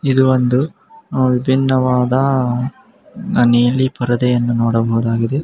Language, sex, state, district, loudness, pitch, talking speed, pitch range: Kannada, male, Karnataka, Mysore, -16 LUFS, 125 Hz, 75 wpm, 120-130 Hz